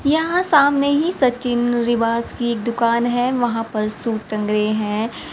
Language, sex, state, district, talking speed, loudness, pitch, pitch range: Hindi, female, Haryana, Rohtak, 145 wpm, -19 LUFS, 235 Hz, 225-260 Hz